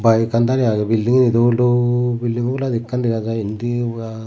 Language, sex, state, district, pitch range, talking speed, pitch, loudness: Chakma, male, Tripura, Unakoti, 115-120 Hz, 180 wpm, 120 Hz, -18 LUFS